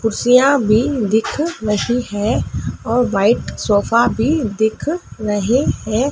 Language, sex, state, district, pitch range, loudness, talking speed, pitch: Hindi, female, Madhya Pradesh, Dhar, 215-255 Hz, -17 LUFS, 115 wpm, 230 Hz